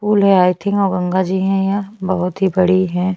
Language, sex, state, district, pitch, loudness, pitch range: Hindi, female, Chhattisgarh, Bastar, 190 Hz, -16 LUFS, 185-195 Hz